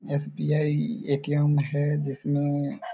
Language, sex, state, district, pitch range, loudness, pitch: Hindi, male, Chhattisgarh, Raigarh, 145-150 Hz, -26 LUFS, 145 Hz